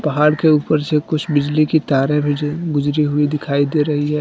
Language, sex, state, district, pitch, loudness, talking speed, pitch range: Hindi, male, Jharkhand, Deoghar, 150 Hz, -17 LUFS, 230 wpm, 145-155 Hz